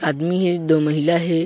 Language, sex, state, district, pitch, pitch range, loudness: Chhattisgarhi, male, Chhattisgarh, Bilaspur, 165 Hz, 155-175 Hz, -19 LUFS